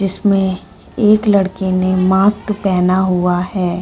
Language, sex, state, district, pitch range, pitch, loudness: Hindi, female, Chhattisgarh, Bilaspur, 185-200 Hz, 190 Hz, -14 LUFS